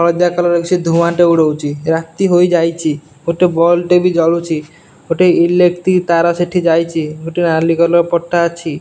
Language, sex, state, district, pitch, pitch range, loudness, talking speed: Odia, male, Odisha, Nuapada, 170 Hz, 165-175 Hz, -13 LUFS, 150 wpm